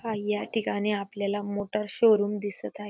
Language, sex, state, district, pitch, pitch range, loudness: Marathi, female, Maharashtra, Dhule, 205 Hz, 205-210 Hz, -28 LUFS